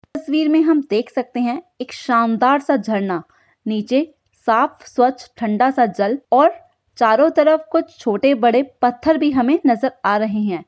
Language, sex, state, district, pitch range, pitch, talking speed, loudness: Hindi, female, Bihar, East Champaran, 230-305 Hz, 255 Hz, 170 wpm, -17 LUFS